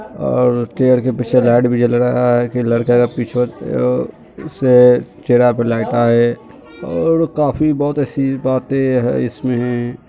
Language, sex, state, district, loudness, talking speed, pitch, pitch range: Hindi, male, Bihar, Muzaffarpur, -15 LUFS, 155 wpm, 125 Hz, 120-130 Hz